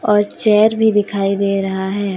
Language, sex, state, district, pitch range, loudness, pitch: Hindi, female, Jharkhand, Deoghar, 195-210 Hz, -15 LUFS, 205 Hz